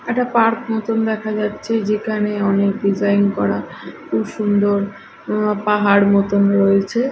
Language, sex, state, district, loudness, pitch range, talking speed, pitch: Bengali, female, Odisha, Khordha, -18 LUFS, 200-220 Hz, 120 wpm, 210 Hz